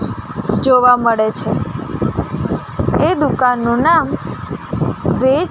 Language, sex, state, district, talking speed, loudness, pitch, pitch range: Gujarati, female, Gujarat, Gandhinagar, 75 wpm, -16 LUFS, 250 Hz, 235-260 Hz